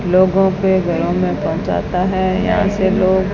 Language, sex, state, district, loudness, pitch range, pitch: Hindi, female, Rajasthan, Bikaner, -16 LUFS, 180-190 Hz, 185 Hz